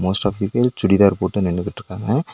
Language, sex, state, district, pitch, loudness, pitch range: Tamil, male, Tamil Nadu, Nilgiris, 100 Hz, -19 LUFS, 95-110 Hz